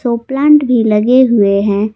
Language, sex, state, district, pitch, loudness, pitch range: Hindi, female, Jharkhand, Palamu, 235 Hz, -11 LUFS, 210-260 Hz